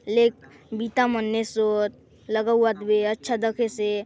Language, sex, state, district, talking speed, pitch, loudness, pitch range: Halbi, female, Chhattisgarh, Bastar, 150 wpm, 225 Hz, -24 LUFS, 215-230 Hz